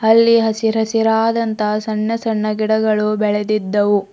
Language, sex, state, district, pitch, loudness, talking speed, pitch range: Kannada, female, Karnataka, Bidar, 220 Hz, -16 LUFS, 85 wpm, 210-225 Hz